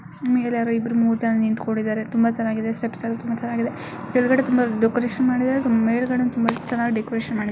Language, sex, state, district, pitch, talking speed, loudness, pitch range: Kannada, female, Karnataka, Mysore, 230 Hz, 175 wpm, -22 LUFS, 225-245 Hz